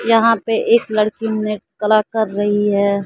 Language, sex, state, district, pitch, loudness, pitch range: Hindi, female, Bihar, West Champaran, 215 Hz, -17 LUFS, 205-225 Hz